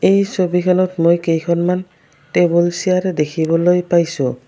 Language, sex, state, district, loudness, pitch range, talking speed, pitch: Assamese, female, Assam, Kamrup Metropolitan, -16 LUFS, 165-180 Hz, 105 wpm, 175 Hz